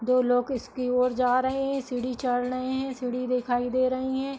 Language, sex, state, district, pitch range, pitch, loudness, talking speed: Hindi, female, Uttar Pradesh, Hamirpur, 250-260 Hz, 255 Hz, -27 LUFS, 220 wpm